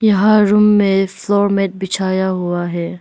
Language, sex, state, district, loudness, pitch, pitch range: Hindi, female, Arunachal Pradesh, Lower Dibang Valley, -15 LUFS, 195 Hz, 185-205 Hz